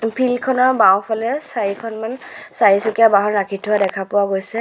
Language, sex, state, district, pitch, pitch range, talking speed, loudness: Assamese, female, Assam, Sonitpur, 220 Hz, 200-235 Hz, 145 wpm, -17 LUFS